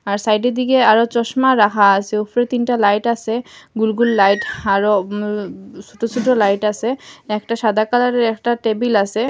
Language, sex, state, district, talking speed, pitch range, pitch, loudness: Bengali, female, Assam, Hailakandi, 170 wpm, 210-240 Hz, 220 Hz, -16 LUFS